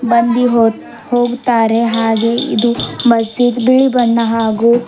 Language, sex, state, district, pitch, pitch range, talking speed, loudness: Kannada, female, Karnataka, Bidar, 235 Hz, 230-245 Hz, 110 wpm, -13 LUFS